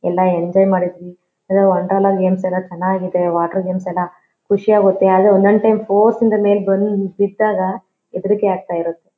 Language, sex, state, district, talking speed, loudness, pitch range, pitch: Kannada, female, Karnataka, Shimoga, 150 wpm, -16 LUFS, 180-200 Hz, 190 Hz